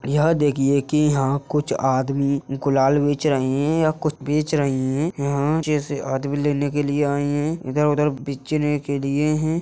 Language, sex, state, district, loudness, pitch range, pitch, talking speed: Hindi, male, Uttar Pradesh, Hamirpur, -21 LUFS, 140-150 Hz, 145 Hz, 185 wpm